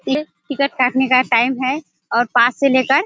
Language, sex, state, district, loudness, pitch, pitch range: Hindi, female, Bihar, Kishanganj, -16 LUFS, 265 Hz, 250-280 Hz